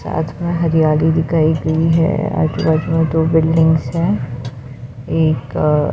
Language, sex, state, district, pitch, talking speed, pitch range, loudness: Hindi, female, Maharashtra, Mumbai Suburban, 160 Hz, 140 wpm, 150-160 Hz, -16 LUFS